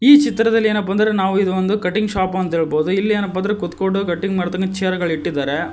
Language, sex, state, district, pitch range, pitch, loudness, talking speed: Kannada, male, Karnataka, Koppal, 180-210 Hz, 190 Hz, -18 LUFS, 180 wpm